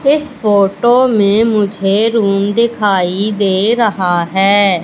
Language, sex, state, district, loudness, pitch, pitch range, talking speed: Hindi, female, Madhya Pradesh, Katni, -12 LUFS, 205 Hz, 195-230 Hz, 110 wpm